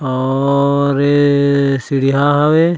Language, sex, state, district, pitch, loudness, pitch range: Chhattisgarhi, male, Chhattisgarh, Raigarh, 140 Hz, -13 LUFS, 135-145 Hz